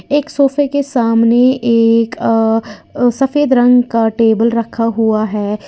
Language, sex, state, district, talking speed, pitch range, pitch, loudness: Hindi, female, Uttar Pradesh, Lalitpur, 135 wpm, 225-260 Hz, 230 Hz, -13 LUFS